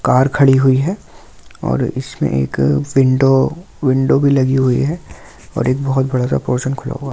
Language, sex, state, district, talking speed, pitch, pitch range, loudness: Hindi, male, Delhi, New Delhi, 175 wpm, 135 Hz, 130-135 Hz, -15 LUFS